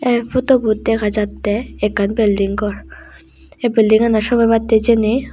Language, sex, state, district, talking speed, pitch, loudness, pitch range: Chakma, female, Tripura, West Tripura, 125 wpm, 220 Hz, -16 LUFS, 210-235 Hz